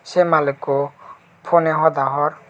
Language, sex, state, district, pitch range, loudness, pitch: Chakma, male, Tripura, Unakoti, 140-160 Hz, -18 LUFS, 150 Hz